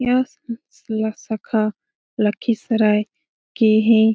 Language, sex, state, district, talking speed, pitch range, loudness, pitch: Hindi, female, Bihar, Lakhisarai, 85 wpm, 215-230 Hz, -20 LUFS, 220 Hz